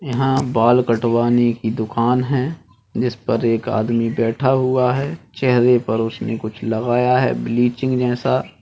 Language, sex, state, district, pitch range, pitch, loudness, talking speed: Hindi, male, Bihar, Jamui, 115-130 Hz, 120 Hz, -18 LUFS, 145 wpm